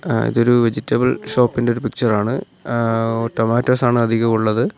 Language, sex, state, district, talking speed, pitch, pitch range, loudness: Malayalam, male, Kerala, Kollam, 150 wpm, 115 Hz, 115-120 Hz, -18 LUFS